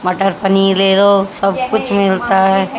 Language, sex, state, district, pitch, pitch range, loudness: Hindi, female, Haryana, Charkhi Dadri, 195 Hz, 190-195 Hz, -13 LUFS